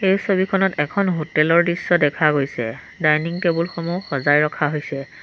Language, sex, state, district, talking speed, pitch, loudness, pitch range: Assamese, female, Assam, Sonitpur, 160 wpm, 165 Hz, -19 LUFS, 145-175 Hz